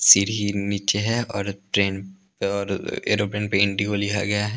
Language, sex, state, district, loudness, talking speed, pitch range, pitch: Hindi, male, Punjab, Pathankot, -22 LUFS, 185 wpm, 100-105 Hz, 100 Hz